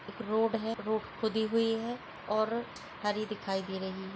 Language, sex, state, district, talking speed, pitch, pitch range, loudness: Hindi, female, Uttar Pradesh, Etah, 190 wpm, 220 Hz, 210-225 Hz, -33 LUFS